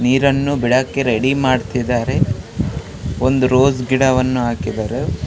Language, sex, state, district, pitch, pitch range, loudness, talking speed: Kannada, male, Karnataka, Raichur, 130 Hz, 120-135 Hz, -17 LUFS, 100 wpm